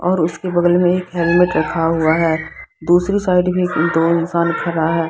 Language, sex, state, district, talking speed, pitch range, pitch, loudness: Hindi, female, Bihar, Patna, 190 wpm, 165-180 Hz, 170 Hz, -16 LUFS